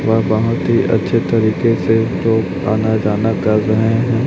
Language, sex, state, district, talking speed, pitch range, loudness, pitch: Hindi, male, Chhattisgarh, Raipur, 170 wpm, 110-115 Hz, -15 LUFS, 110 Hz